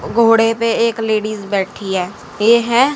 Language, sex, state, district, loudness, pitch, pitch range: Hindi, female, Haryana, Jhajjar, -15 LUFS, 225 Hz, 205-230 Hz